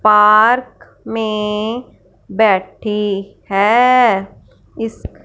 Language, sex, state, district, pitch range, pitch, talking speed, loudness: Hindi, female, Punjab, Fazilka, 195-225 Hz, 210 Hz, 55 wpm, -15 LUFS